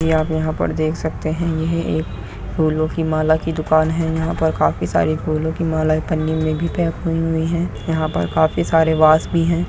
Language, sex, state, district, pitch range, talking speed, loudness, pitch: Hindi, male, Uttar Pradesh, Muzaffarnagar, 155-165 Hz, 205 wpm, -19 LUFS, 160 Hz